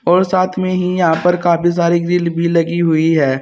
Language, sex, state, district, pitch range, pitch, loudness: Hindi, male, Uttar Pradesh, Saharanpur, 165-180 Hz, 170 Hz, -14 LUFS